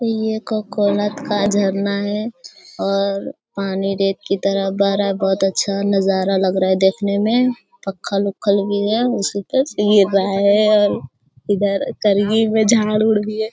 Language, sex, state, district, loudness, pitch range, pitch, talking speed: Hindi, female, Bihar, Jamui, -18 LUFS, 195-215 Hz, 200 Hz, 170 wpm